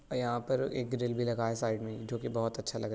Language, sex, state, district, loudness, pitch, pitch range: Hindi, male, Uttar Pradesh, Budaun, -34 LUFS, 120 Hz, 115-125 Hz